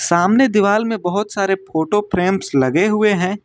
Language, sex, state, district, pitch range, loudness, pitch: Hindi, male, Uttar Pradesh, Lucknow, 180-210 Hz, -16 LUFS, 195 Hz